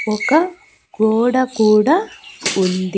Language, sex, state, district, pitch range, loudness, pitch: Telugu, female, Andhra Pradesh, Annamaya, 210-310 Hz, -16 LUFS, 220 Hz